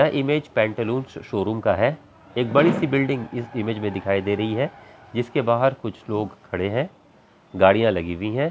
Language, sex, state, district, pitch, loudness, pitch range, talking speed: Hindi, male, Bihar, Gaya, 115 Hz, -23 LUFS, 105-135 Hz, 185 wpm